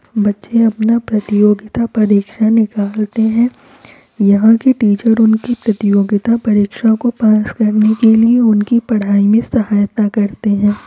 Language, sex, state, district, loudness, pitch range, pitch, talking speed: Hindi, female, Uttar Pradesh, Varanasi, -13 LUFS, 205-230 Hz, 220 Hz, 125 wpm